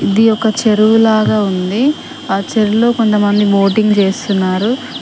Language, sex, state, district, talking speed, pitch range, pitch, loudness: Telugu, female, Telangana, Mahabubabad, 120 wpm, 200-225 Hz, 215 Hz, -13 LUFS